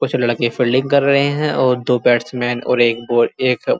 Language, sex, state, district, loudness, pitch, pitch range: Hindi, male, Uttar Pradesh, Muzaffarnagar, -16 LUFS, 125 Hz, 120-130 Hz